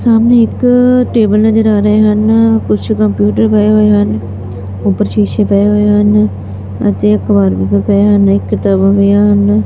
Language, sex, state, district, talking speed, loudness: Punjabi, female, Punjab, Fazilka, 160 wpm, -10 LUFS